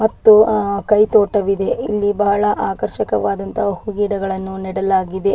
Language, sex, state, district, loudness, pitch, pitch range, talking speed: Kannada, female, Karnataka, Dakshina Kannada, -17 LUFS, 200 Hz, 195-210 Hz, 90 wpm